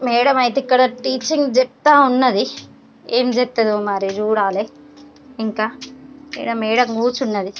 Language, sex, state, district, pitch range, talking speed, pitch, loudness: Telugu, female, Telangana, Karimnagar, 220-270 Hz, 110 wpm, 250 Hz, -17 LUFS